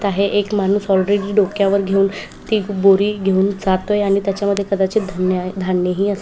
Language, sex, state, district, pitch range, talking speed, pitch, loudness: Marathi, female, Maharashtra, Pune, 190-205 Hz, 175 wpm, 195 Hz, -17 LUFS